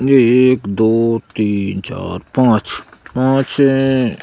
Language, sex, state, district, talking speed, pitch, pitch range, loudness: Hindi, male, Madhya Pradesh, Bhopal, 115 wpm, 125 Hz, 110-135 Hz, -15 LUFS